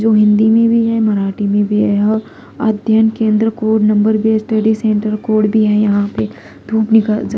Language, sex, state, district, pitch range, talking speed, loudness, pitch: Hindi, female, Delhi, New Delhi, 210-220 Hz, 195 wpm, -14 LUFS, 215 Hz